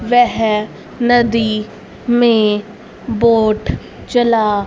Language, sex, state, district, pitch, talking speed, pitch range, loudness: Hindi, female, Haryana, Rohtak, 225 Hz, 65 wpm, 215-240 Hz, -15 LUFS